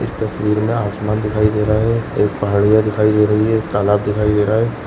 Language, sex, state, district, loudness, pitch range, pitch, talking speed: Hindi, male, Goa, North and South Goa, -16 LUFS, 105-110 Hz, 105 Hz, 235 wpm